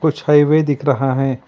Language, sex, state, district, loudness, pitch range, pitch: Hindi, male, Karnataka, Bangalore, -15 LUFS, 135-150 Hz, 145 Hz